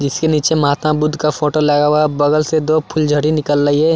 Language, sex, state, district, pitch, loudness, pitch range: Hindi, male, Chandigarh, Chandigarh, 150 Hz, -15 LUFS, 145-155 Hz